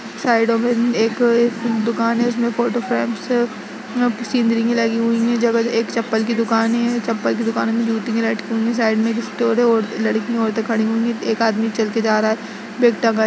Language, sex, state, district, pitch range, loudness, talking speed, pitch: Hindi, female, Uttar Pradesh, Budaun, 225-235 Hz, -18 LUFS, 220 wpm, 230 Hz